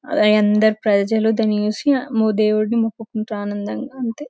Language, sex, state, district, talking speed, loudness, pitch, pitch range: Telugu, female, Telangana, Karimnagar, 140 wpm, -18 LUFS, 220 Hz, 210-230 Hz